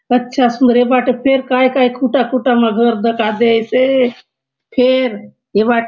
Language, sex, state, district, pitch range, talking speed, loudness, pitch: Halbi, female, Chhattisgarh, Bastar, 235-255 Hz, 165 wpm, -14 LUFS, 245 Hz